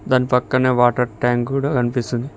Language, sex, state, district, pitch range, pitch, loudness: Telugu, male, Telangana, Mahabubabad, 120-130 Hz, 125 Hz, -18 LUFS